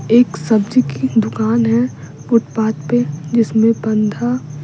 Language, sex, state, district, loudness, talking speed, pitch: Hindi, female, Bihar, Patna, -16 LUFS, 130 wpm, 150 Hz